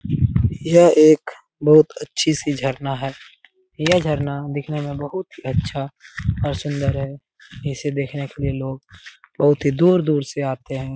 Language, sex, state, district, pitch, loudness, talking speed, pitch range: Hindi, male, Bihar, Lakhisarai, 145 Hz, -20 LUFS, 155 wpm, 135-155 Hz